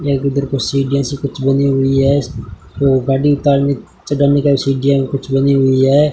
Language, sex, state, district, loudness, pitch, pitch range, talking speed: Hindi, male, Rajasthan, Bikaner, -14 LUFS, 140 Hz, 135-140 Hz, 195 wpm